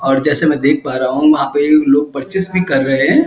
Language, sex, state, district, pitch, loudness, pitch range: Hindi, male, Uttar Pradesh, Muzaffarnagar, 145 Hz, -13 LUFS, 135-185 Hz